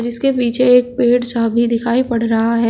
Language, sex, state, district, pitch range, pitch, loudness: Hindi, male, Uttar Pradesh, Shamli, 230-250 Hz, 240 Hz, -14 LUFS